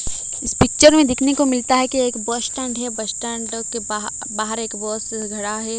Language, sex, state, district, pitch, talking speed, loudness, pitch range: Hindi, female, Odisha, Malkangiri, 235 Hz, 215 wpm, -18 LUFS, 220-255 Hz